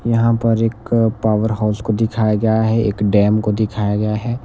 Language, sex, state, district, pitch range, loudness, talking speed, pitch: Hindi, male, Himachal Pradesh, Shimla, 105-115 Hz, -17 LUFS, 200 wpm, 110 Hz